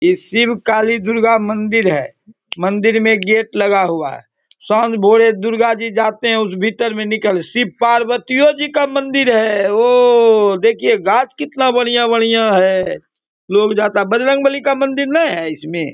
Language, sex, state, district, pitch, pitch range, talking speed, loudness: Hindi, male, Bihar, Samastipur, 225 Hz, 210-245 Hz, 155 wpm, -14 LUFS